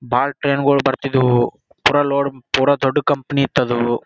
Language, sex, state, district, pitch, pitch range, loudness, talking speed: Kannada, male, Karnataka, Gulbarga, 140 Hz, 125-140 Hz, -17 LUFS, 180 wpm